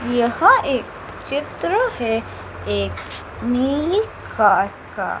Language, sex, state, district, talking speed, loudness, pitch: Hindi, female, Madhya Pradesh, Dhar, 90 wpm, -20 LUFS, 235 Hz